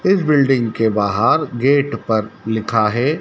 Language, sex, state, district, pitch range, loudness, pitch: Hindi, male, Madhya Pradesh, Dhar, 110-140 Hz, -17 LUFS, 115 Hz